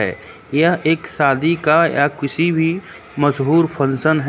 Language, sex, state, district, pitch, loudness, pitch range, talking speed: Hindi, male, Uttar Pradesh, Lucknow, 155 Hz, -17 LUFS, 145-165 Hz, 140 wpm